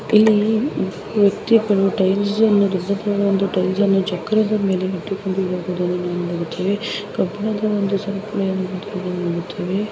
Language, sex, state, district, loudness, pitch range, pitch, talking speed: Kannada, female, Karnataka, Dharwad, -20 LUFS, 185-210 Hz, 195 Hz, 30 wpm